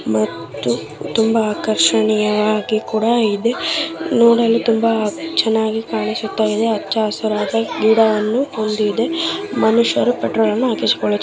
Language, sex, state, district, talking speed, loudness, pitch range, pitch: Kannada, female, Karnataka, Raichur, 105 wpm, -17 LUFS, 210-230 Hz, 220 Hz